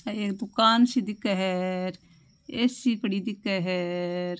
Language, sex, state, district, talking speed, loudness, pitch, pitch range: Marwari, female, Rajasthan, Nagaur, 165 wpm, -26 LUFS, 200 Hz, 180-225 Hz